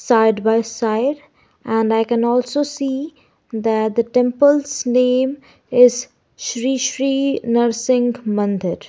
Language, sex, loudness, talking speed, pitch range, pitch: English, female, -18 LUFS, 120 wpm, 225-265 Hz, 245 Hz